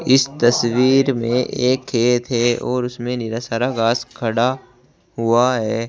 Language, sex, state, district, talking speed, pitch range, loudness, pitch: Hindi, male, Uttar Pradesh, Saharanpur, 140 wpm, 115-125 Hz, -18 LUFS, 120 Hz